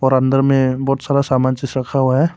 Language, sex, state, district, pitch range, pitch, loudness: Hindi, male, Arunachal Pradesh, Papum Pare, 130-135 Hz, 135 Hz, -16 LUFS